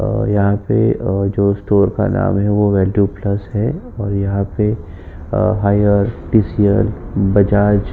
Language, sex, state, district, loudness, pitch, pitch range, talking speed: Hindi, male, Uttar Pradesh, Jyotiba Phule Nagar, -16 LUFS, 100 Hz, 100-105 Hz, 160 wpm